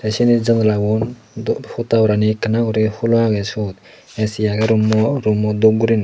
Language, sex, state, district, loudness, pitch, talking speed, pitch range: Chakma, male, Tripura, Dhalai, -17 LUFS, 110 Hz, 180 wpm, 105-115 Hz